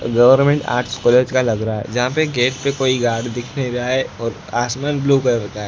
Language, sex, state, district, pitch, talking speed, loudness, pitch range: Hindi, male, Gujarat, Gandhinagar, 125 Hz, 230 wpm, -17 LUFS, 120-130 Hz